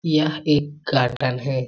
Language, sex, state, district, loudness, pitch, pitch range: Hindi, male, Chhattisgarh, Balrampur, -21 LUFS, 145 Hz, 130-155 Hz